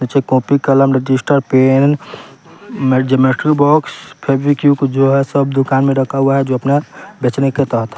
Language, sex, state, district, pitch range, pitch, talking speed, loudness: Hindi, male, Bihar, West Champaran, 130-140 Hz, 135 Hz, 160 wpm, -13 LUFS